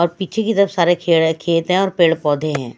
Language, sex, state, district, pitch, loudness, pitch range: Hindi, female, Odisha, Malkangiri, 170 Hz, -16 LUFS, 160-185 Hz